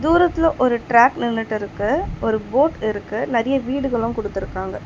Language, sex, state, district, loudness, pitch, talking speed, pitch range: Tamil, female, Tamil Nadu, Chennai, -20 LUFS, 235 Hz, 125 wpm, 215-275 Hz